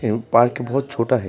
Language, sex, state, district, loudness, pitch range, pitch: Hindi, male, Uttar Pradesh, Hamirpur, -19 LUFS, 115-130 Hz, 120 Hz